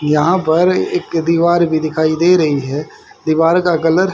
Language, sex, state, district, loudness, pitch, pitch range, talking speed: Hindi, male, Haryana, Rohtak, -14 LUFS, 165 Hz, 155-175 Hz, 190 wpm